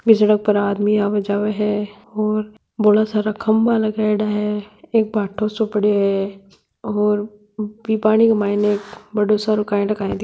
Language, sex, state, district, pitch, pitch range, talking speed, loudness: Marwari, female, Rajasthan, Nagaur, 210 Hz, 205-215 Hz, 170 wpm, -19 LUFS